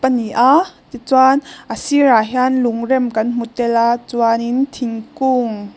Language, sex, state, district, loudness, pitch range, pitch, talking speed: Mizo, female, Mizoram, Aizawl, -15 LUFS, 230-265 Hz, 245 Hz, 145 wpm